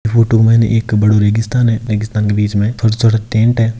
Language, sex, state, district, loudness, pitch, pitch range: Hindi, male, Rajasthan, Nagaur, -13 LUFS, 110 Hz, 105-115 Hz